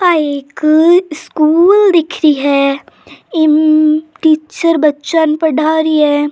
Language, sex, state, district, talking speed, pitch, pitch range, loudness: Rajasthani, female, Rajasthan, Churu, 125 wpm, 310 Hz, 300-325 Hz, -11 LUFS